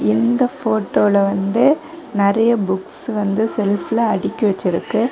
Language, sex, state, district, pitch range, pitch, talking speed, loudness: Tamil, female, Tamil Nadu, Kanyakumari, 200-235 Hz, 215 Hz, 105 wpm, -18 LUFS